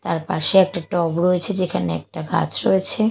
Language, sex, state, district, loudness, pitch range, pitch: Bengali, female, Odisha, Malkangiri, -20 LUFS, 165-190 Hz, 180 Hz